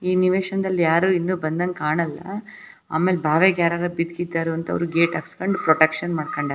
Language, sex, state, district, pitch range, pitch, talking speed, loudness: Kannada, female, Karnataka, Bijapur, 160-185 Hz, 170 Hz, 130 wpm, -21 LUFS